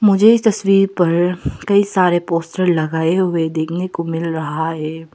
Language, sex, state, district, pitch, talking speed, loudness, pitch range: Hindi, female, Arunachal Pradesh, Papum Pare, 170 Hz, 165 wpm, -17 LUFS, 160-195 Hz